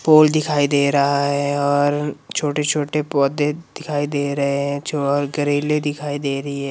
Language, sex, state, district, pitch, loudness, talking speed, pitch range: Hindi, male, Himachal Pradesh, Shimla, 145 Hz, -19 LUFS, 160 wpm, 140-150 Hz